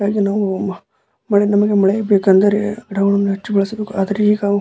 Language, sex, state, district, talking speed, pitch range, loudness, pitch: Kannada, male, Karnataka, Dharwad, 180 wpm, 195-210 Hz, -16 LUFS, 200 Hz